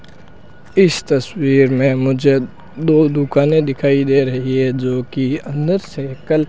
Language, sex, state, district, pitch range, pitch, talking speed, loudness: Hindi, male, Rajasthan, Bikaner, 130-150 Hz, 140 Hz, 150 wpm, -16 LUFS